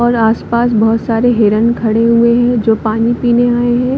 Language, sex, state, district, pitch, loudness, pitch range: Hindi, female, Chhattisgarh, Bilaspur, 235 Hz, -12 LUFS, 225-240 Hz